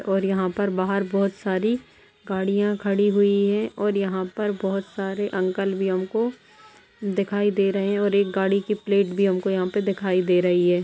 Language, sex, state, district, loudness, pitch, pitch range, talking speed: Hindi, female, Bihar, Jamui, -23 LUFS, 200 Hz, 190-205 Hz, 195 wpm